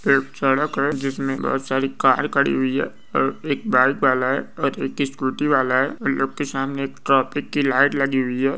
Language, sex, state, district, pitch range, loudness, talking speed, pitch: Hindi, male, West Bengal, Malda, 130-140 Hz, -21 LUFS, 200 wpm, 135 Hz